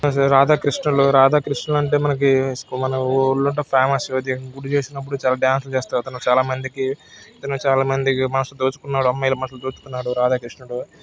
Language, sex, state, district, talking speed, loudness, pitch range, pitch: Telugu, male, Andhra Pradesh, Srikakulam, 125 wpm, -20 LUFS, 130-140 Hz, 135 Hz